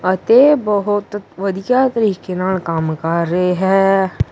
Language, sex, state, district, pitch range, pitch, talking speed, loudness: Punjabi, female, Punjab, Kapurthala, 180-205 Hz, 195 Hz, 125 wpm, -15 LUFS